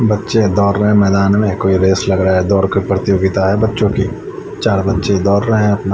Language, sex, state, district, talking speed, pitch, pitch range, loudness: Hindi, male, Haryana, Charkhi Dadri, 230 wpm, 100 Hz, 95-105 Hz, -14 LUFS